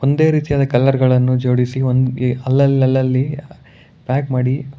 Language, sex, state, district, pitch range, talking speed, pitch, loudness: Kannada, male, Karnataka, Bangalore, 125-140 Hz, 115 wpm, 130 Hz, -16 LUFS